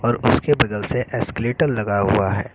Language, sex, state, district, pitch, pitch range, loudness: Hindi, male, Uttar Pradesh, Lucknow, 120 Hz, 105-125 Hz, -20 LUFS